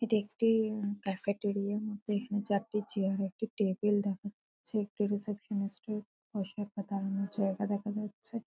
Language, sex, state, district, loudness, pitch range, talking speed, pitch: Bengali, female, West Bengal, Kolkata, -34 LUFS, 200-210 Hz, 135 wpm, 205 Hz